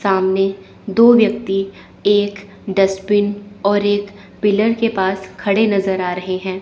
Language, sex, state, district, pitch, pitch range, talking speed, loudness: Hindi, female, Chandigarh, Chandigarh, 200 Hz, 195-205 Hz, 135 wpm, -17 LUFS